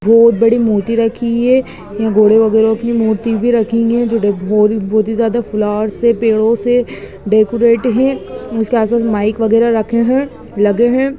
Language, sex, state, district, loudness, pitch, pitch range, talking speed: Hindi, female, Bihar, Gaya, -13 LUFS, 230 Hz, 215-235 Hz, 160 wpm